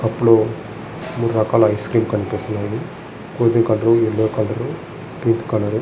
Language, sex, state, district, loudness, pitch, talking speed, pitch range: Telugu, male, Andhra Pradesh, Srikakulam, -18 LUFS, 110 Hz, 145 wpm, 110-115 Hz